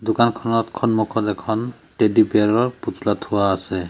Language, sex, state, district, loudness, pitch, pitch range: Assamese, male, Assam, Sonitpur, -20 LUFS, 110 Hz, 105-115 Hz